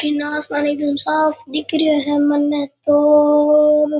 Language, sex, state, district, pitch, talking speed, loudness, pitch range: Rajasthani, male, Rajasthan, Churu, 295 Hz, 165 wpm, -16 LUFS, 290-300 Hz